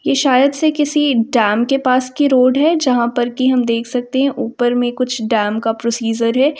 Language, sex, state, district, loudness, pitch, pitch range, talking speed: Hindi, female, Uttar Pradesh, Varanasi, -15 LUFS, 255 Hz, 235-275 Hz, 220 wpm